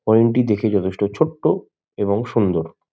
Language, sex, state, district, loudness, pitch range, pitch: Bengali, male, West Bengal, Malda, -20 LUFS, 100-110 Hz, 105 Hz